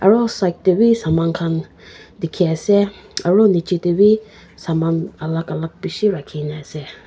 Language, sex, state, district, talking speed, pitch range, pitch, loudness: Nagamese, female, Nagaland, Kohima, 155 wpm, 165-200 Hz, 175 Hz, -18 LUFS